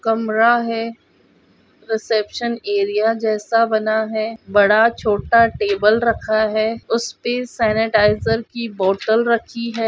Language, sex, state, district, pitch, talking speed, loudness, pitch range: Hindi, female, Goa, North and South Goa, 225 Hz, 110 wpm, -18 LUFS, 215-230 Hz